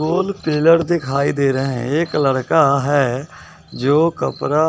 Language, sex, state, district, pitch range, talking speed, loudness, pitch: Hindi, male, Bihar, West Champaran, 140-160 Hz, 140 wpm, -17 LUFS, 145 Hz